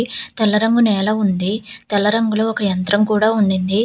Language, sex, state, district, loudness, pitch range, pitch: Telugu, female, Telangana, Hyderabad, -17 LUFS, 205-225 Hz, 215 Hz